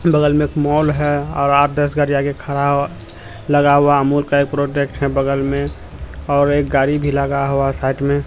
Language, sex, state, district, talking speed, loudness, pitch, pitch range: Hindi, male, Bihar, Katihar, 195 wpm, -16 LUFS, 140 Hz, 140-145 Hz